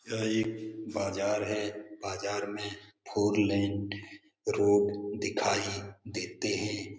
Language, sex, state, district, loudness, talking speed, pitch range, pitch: Hindi, male, Bihar, Jamui, -32 LUFS, 105 wpm, 100-105 Hz, 105 Hz